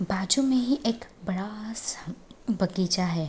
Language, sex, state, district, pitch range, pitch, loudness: Hindi, female, Uttar Pradesh, Deoria, 185-240 Hz, 205 Hz, -28 LUFS